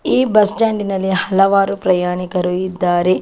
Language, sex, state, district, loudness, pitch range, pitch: Kannada, female, Karnataka, Chamarajanagar, -16 LUFS, 180-200 Hz, 190 Hz